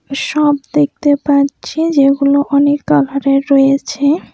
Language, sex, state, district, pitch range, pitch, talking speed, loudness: Bengali, female, West Bengal, Alipurduar, 275-290 Hz, 280 Hz, 95 wpm, -13 LUFS